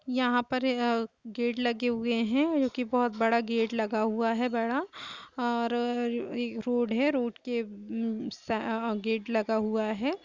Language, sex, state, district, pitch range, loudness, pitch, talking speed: Hindi, female, Chhattisgarh, Kabirdham, 225-245 Hz, -29 LUFS, 235 Hz, 165 wpm